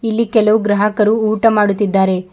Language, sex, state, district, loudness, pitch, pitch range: Kannada, female, Karnataka, Bidar, -14 LUFS, 210 Hz, 205-220 Hz